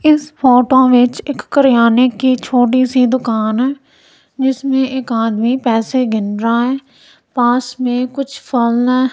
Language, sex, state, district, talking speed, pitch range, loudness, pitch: Hindi, female, Punjab, Kapurthala, 140 wpm, 240-265 Hz, -14 LUFS, 255 Hz